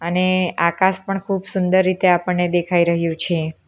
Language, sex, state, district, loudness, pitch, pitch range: Gujarati, female, Gujarat, Valsad, -18 LUFS, 180 Hz, 170-185 Hz